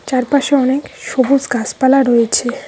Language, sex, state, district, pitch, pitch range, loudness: Bengali, female, West Bengal, Cooch Behar, 265 Hz, 245-275 Hz, -14 LUFS